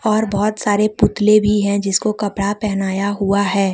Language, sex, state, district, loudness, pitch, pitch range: Hindi, female, Jharkhand, Deoghar, -17 LUFS, 205 Hz, 200-215 Hz